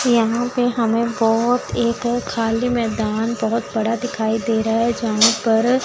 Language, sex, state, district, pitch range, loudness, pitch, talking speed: Hindi, female, Chandigarh, Chandigarh, 225-240 Hz, -19 LUFS, 230 Hz, 155 wpm